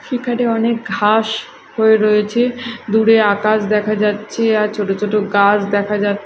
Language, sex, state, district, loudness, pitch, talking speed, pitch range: Bengali, female, Odisha, Malkangiri, -15 LUFS, 215 Hz, 145 wpm, 210-225 Hz